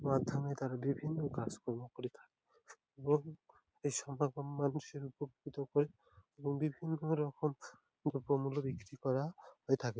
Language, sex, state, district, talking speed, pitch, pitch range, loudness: Bengali, male, West Bengal, Dakshin Dinajpur, 120 wpm, 140 Hz, 135-150 Hz, -39 LUFS